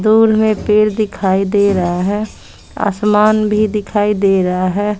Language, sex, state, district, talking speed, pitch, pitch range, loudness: Hindi, female, Bihar, West Champaran, 155 wpm, 210 Hz, 195-215 Hz, -14 LUFS